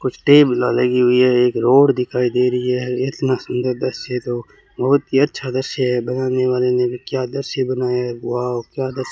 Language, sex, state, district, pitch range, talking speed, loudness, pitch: Hindi, male, Rajasthan, Bikaner, 125-130 Hz, 210 wpm, -18 LUFS, 125 Hz